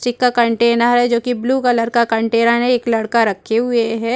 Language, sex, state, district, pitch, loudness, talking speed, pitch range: Hindi, female, Chhattisgarh, Rajnandgaon, 235 Hz, -15 LUFS, 215 wpm, 230-245 Hz